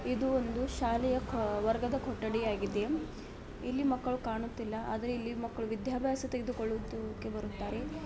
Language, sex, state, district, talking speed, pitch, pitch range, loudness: Kannada, female, Karnataka, Belgaum, 110 wpm, 235 Hz, 220-255 Hz, -35 LUFS